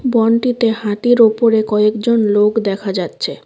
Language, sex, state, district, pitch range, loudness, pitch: Bengali, female, West Bengal, Cooch Behar, 210-230 Hz, -14 LUFS, 220 Hz